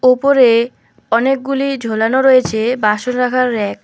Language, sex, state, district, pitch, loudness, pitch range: Bengali, female, West Bengal, Alipurduar, 250 Hz, -14 LUFS, 225-260 Hz